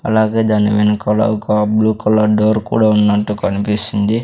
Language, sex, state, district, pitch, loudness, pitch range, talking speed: Telugu, male, Andhra Pradesh, Sri Satya Sai, 105 Hz, -14 LUFS, 105-110 Hz, 125 wpm